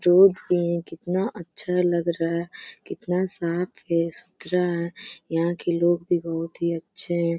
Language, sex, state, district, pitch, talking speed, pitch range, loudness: Hindi, female, Uttar Pradesh, Deoria, 175 Hz, 170 wpm, 170-180 Hz, -25 LUFS